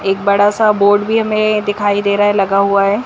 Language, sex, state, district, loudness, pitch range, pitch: Hindi, female, Madhya Pradesh, Bhopal, -13 LUFS, 200-210 Hz, 205 Hz